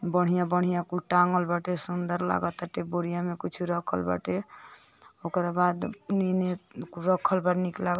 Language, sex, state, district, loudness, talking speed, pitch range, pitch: Hindi, female, Uttar Pradesh, Ghazipur, -28 LUFS, 145 wpm, 175-180 Hz, 180 Hz